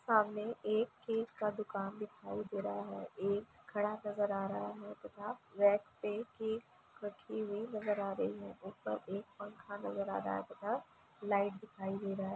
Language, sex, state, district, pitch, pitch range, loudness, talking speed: Hindi, female, Uttar Pradesh, Jalaun, 205 Hz, 190-215 Hz, -39 LUFS, 180 wpm